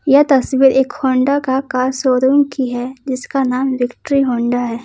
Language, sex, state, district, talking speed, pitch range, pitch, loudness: Hindi, female, Jharkhand, Ranchi, 175 wpm, 250-275 Hz, 265 Hz, -15 LUFS